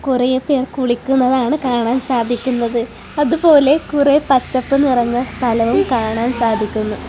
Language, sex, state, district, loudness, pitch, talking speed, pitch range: Malayalam, female, Kerala, Kasaragod, -16 LUFS, 255 Hz, 110 wpm, 235-275 Hz